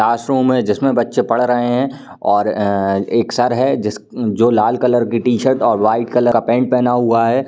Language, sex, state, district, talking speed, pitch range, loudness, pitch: Hindi, male, Uttar Pradesh, Varanasi, 210 wpm, 110-125 Hz, -15 LUFS, 120 Hz